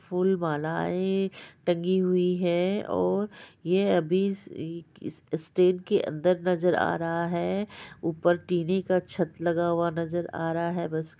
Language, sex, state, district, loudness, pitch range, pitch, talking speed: Hindi, female, Bihar, Purnia, -27 LUFS, 170-185 Hz, 175 Hz, 155 wpm